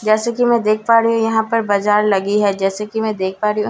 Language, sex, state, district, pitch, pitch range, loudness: Hindi, female, Bihar, Katihar, 215 Hz, 205-225 Hz, -16 LUFS